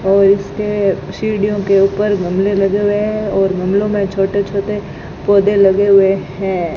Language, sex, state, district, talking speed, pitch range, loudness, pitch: Hindi, female, Rajasthan, Bikaner, 160 wpm, 195-205 Hz, -14 LUFS, 200 Hz